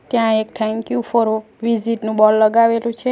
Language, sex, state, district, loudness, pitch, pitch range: Gujarati, female, Gujarat, Valsad, -17 LUFS, 230 Hz, 220-230 Hz